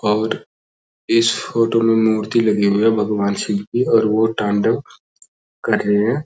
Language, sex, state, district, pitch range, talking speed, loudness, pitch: Hindi, male, Uttar Pradesh, Muzaffarnagar, 105-115 Hz, 165 wpm, -17 LUFS, 110 Hz